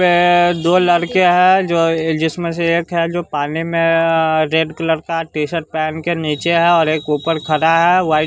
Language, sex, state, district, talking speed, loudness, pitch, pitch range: Hindi, male, Bihar, West Champaran, 195 wpm, -15 LUFS, 165 Hz, 160-170 Hz